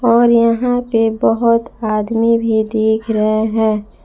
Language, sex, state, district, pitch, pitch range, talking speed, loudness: Hindi, female, Jharkhand, Palamu, 225 Hz, 220-230 Hz, 135 wpm, -15 LUFS